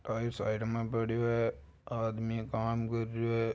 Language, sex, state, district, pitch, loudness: Marwari, male, Rajasthan, Churu, 115 Hz, -34 LUFS